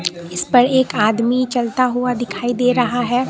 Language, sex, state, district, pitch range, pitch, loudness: Hindi, female, Bihar, Katihar, 230-250 Hz, 245 Hz, -17 LUFS